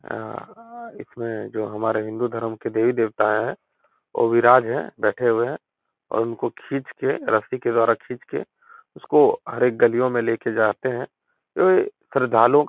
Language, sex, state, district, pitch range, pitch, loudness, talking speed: Hindi, male, Uttar Pradesh, Etah, 110-140 Hz, 120 Hz, -22 LUFS, 165 wpm